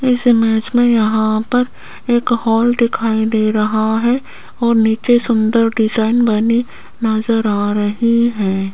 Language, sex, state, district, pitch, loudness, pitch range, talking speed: Hindi, female, Rajasthan, Jaipur, 225 Hz, -15 LUFS, 220-235 Hz, 135 wpm